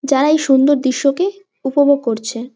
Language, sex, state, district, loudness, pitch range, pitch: Bengali, female, West Bengal, Jalpaiguri, -15 LUFS, 260-290 Hz, 275 Hz